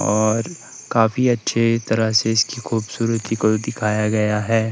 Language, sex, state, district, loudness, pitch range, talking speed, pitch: Hindi, male, Himachal Pradesh, Shimla, -19 LUFS, 110-115 Hz, 155 wpm, 110 Hz